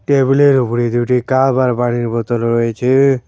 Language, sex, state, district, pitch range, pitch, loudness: Bengali, male, West Bengal, Cooch Behar, 120-135 Hz, 125 Hz, -14 LUFS